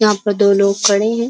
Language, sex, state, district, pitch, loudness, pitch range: Hindi, female, Uttar Pradesh, Jyotiba Phule Nagar, 205 Hz, -14 LUFS, 200-215 Hz